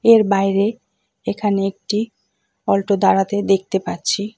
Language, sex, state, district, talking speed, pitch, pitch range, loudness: Bengali, female, West Bengal, Cooch Behar, 110 wpm, 200 Hz, 195-210 Hz, -19 LUFS